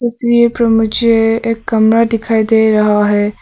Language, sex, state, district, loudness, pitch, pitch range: Hindi, female, Arunachal Pradesh, Papum Pare, -12 LUFS, 225 Hz, 220-230 Hz